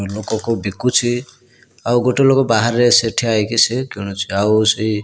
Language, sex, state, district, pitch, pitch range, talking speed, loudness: Odia, male, Odisha, Malkangiri, 115 Hz, 105-120 Hz, 155 wpm, -16 LUFS